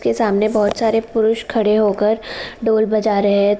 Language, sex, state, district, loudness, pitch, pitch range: Hindi, female, Uttar Pradesh, Jalaun, -17 LUFS, 215 Hz, 205-225 Hz